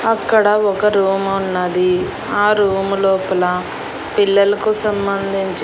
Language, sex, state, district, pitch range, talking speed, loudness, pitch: Telugu, female, Andhra Pradesh, Annamaya, 190-205 Hz, 95 wpm, -16 LUFS, 195 Hz